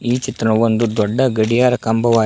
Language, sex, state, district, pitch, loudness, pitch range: Kannada, male, Karnataka, Koppal, 115 Hz, -16 LUFS, 110-125 Hz